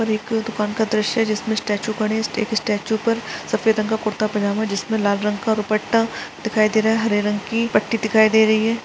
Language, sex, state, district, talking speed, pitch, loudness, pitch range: Hindi, female, Chhattisgarh, Sarguja, 230 wpm, 220 Hz, -20 LUFS, 215-220 Hz